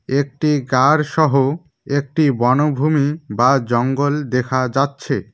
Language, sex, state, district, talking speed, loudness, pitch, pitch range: Bengali, male, West Bengal, Cooch Behar, 100 wpm, -17 LUFS, 140 Hz, 130-150 Hz